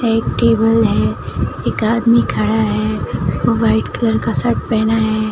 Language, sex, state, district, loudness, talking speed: Hindi, female, Bihar, Katihar, -16 LUFS, 160 wpm